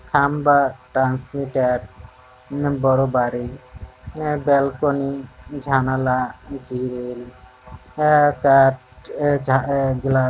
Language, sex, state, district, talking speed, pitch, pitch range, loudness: Bengali, male, West Bengal, Jalpaiguri, 65 wpm, 135 Hz, 125-140 Hz, -19 LUFS